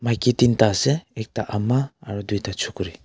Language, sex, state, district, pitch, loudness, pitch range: Nagamese, male, Nagaland, Kohima, 110 Hz, -22 LUFS, 105-125 Hz